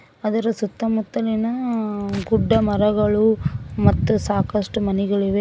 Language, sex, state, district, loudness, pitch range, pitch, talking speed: Kannada, female, Karnataka, Koppal, -21 LUFS, 200-225 Hz, 210 Hz, 75 wpm